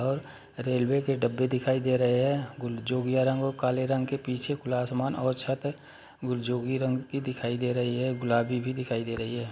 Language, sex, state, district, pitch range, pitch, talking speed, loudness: Hindi, male, Chhattisgarh, Bastar, 125-135 Hz, 130 Hz, 210 wpm, -29 LUFS